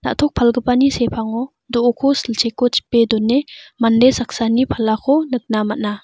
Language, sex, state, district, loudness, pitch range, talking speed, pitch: Garo, female, Meghalaya, West Garo Hills, -17 LUFS, 230-265 Hz, 120 wpm, 240 Hz